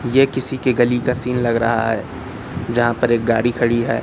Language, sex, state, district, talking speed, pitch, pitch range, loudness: Hindi, male, Madhya Pradesh, Katni, 225 wpm, 120 Hz, 115-125 Hz, -18 LUFS